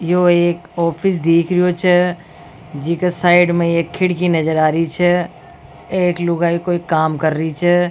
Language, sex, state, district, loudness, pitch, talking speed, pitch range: Rajasthani, female, Rajasthan, Nagaur, -16 LUFS, 175 Hz, 175 wpm, 165-180 Hz